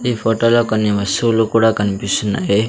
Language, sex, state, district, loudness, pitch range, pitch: Telugu, male, Andhra Pradesh, Sri Satya Sai, -16 LUFS, 100-115 Hz, 110 Hz